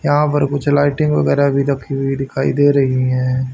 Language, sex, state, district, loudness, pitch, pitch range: Hindi, male, Haryana, Rohtak, -16 LUFS, 140 Hz, 130-145 Hz